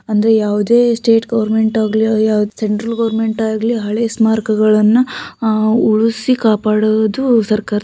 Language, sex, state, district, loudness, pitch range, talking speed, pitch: Kannada, female, Karnataka, Shimoga, -14 LUFS, 215-230 Hz, 105 wpm, 220 Hz